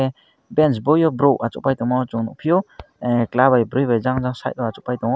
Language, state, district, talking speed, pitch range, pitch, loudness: Kokborok, Tripura, Dhalai, 235 wpm, 120-140 Hz, 130 Hz, -19 LUFS